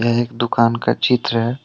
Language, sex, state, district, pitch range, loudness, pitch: Hindi, male, Jharkhand, Deoghar, 115-120 Hz, -18 LUFS, 120 Hz